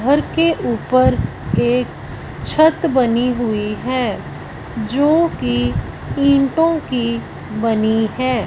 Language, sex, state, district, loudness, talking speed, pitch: Hindi, female, Punjab, Fazilka, -17 LUFS, 100 wpm, 235 Hz